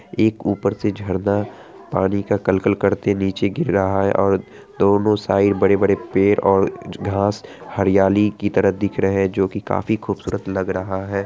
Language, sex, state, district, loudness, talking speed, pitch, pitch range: Hindi, male, Bihar, Araria, -19 LUFS, 185 wpm, 100 Hz, 95-100 Hz